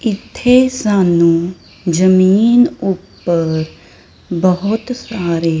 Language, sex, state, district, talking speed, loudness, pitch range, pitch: Punjabi, female, Punjab, Kapurthala, 65 wpm, -14 LUFS, 170-220 Hz, 185 Hz